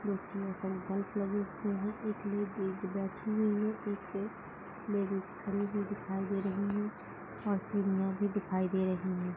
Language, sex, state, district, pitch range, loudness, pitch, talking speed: Hindi, female, Goa, North and South Goa, 195-205 Hz, -36 LUFS, 200 Hz, 165 wpm